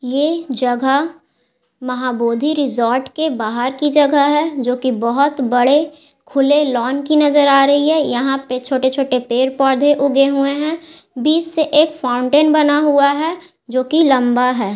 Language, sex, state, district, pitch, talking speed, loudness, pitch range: Hindi, female, Bihar, Gaya, 275 Hz, 155 wpm, -15 LUFS, 255-300 Hz